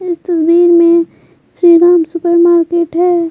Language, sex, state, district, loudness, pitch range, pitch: Hindi, female, Bihar, Patna, -10 LUFS, 335-345 Hz, 345 Hz